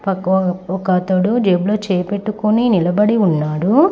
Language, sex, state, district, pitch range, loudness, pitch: Telugu, female, Andhra Pradesh, Srikakulam, 180-215 Hz, -16 LUFS, 195 Hz